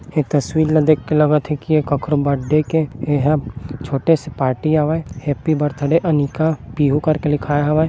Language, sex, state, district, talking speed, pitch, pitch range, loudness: Chhattisgarhi, male, Chhattisgarh, Bilaspur, 180 wpm, 150 Hz, 145-155 Hz, -18 LUFS